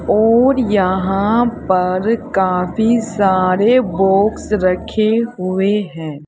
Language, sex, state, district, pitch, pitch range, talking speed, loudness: Hindi, female, Uttar Pradesh, Saharanpur, 200 Hz, 185-225 Hz, 85 wpm, -15 LUFS